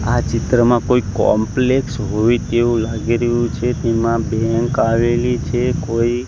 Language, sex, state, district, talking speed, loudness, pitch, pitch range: Gujarati, male, Gujarat, Gandhinagar, 135 wpm, -17 LUFS, 120 Hz, 115-125 Hz